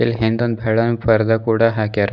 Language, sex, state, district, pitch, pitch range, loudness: Kannada, male, Karnataka, Bidar, 115 Hz, 110-115 Hz, -17 LUFS